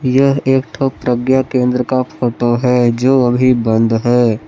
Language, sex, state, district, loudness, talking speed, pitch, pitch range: Hindi, male, Jharkhand, Palamu, -14 LUFS, 160 wpm, 125 Hz, 120-130 Hz